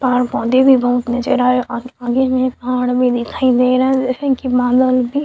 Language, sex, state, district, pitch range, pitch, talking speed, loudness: Hindi, female, Chhattisgarh, Sukma, 245-260 Hz, 250 Hz, 230 wpm, -15 LUFS